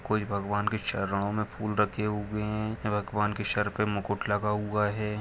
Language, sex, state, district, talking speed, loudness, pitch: Hindi, male, Jharkhand, Sahebganj, 195 wpm, -29 LUFS, 105 Hz